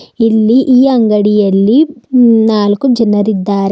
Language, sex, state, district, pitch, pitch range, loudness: Kannada, female, Karnataka, Bidar, 220 Hz, 205-250 Hz, -10 LUFS